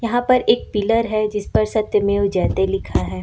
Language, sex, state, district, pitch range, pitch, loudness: Hindi, female, Uttar Pradesh, Lucknow, 200-225 Hz, 210 Hz, -19 LUFS